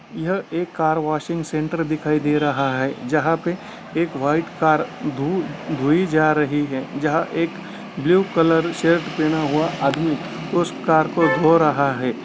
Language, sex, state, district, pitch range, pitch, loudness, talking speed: Hindi, male, Bihar, Gaya, 150-170 Hz, 160 Hz, -20 LUFS, 155 wpm